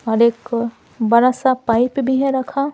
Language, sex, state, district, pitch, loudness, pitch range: Hindi, female, Bihar, Patna, 245 Hz, -17 LUFS, 235-265 Hz